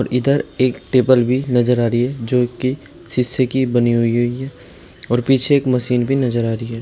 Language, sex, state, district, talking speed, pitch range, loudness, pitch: Hindi, male, Uttar Pradesh, Shamli, 210 wpm, 120-130 Hz, -17 LUFS, 125 Hz